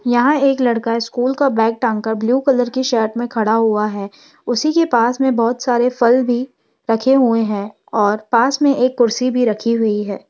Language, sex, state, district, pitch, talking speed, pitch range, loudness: Hindi, female, Bihar, Madhepura, 240 Hz, 210 wpm, 225-255 Hz, -16 LUFS